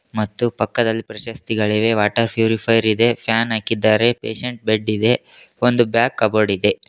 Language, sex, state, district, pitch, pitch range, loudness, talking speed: Kannada, male, Karnataka, Koppal, 115 Hz, 110-115 Hz, -18 LUFS, 115 wpm